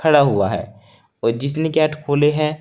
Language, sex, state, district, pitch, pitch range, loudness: Hindi, male, Uttar Pradesh, Saharanpur, 150 Hz, 140-155 Hz, -18 LUFS